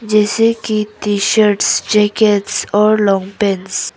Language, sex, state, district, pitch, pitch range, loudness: Hindi, female, Arunachal Pradesh, Papum Pare, 210 Hz, 205-215 Hz, -14 LUFS